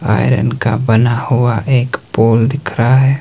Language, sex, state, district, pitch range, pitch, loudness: Hindi, male, Himachal Pradesh, Shimla, 115-130 Hz, 120 Hz, -13 LUFS